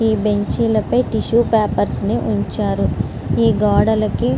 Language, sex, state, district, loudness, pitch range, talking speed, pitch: Telugu, female, Andhra Pradesh, Srikakulam, -17 LUFS, 215-230 Hz, 135 wpm, 220 Hz